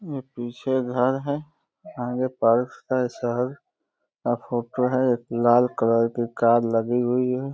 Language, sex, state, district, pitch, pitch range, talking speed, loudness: Hindi, male, Uttar Pradesh, Deoria, 125 Hz, 120-130 Hz, 150 wpm, -23 LUFS